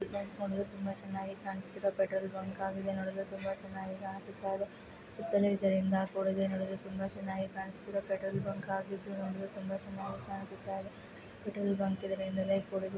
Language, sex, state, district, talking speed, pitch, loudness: Kannada, female, Karnataka, Belgaum, 155 wpm, 195 Hz, -37 LUFS